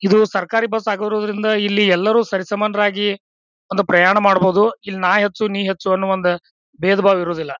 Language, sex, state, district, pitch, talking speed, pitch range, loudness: Kannada, male, Karnataka, Bijapur, 205 Hz, 150 wpm, 190-210 Hz, -17 LUFS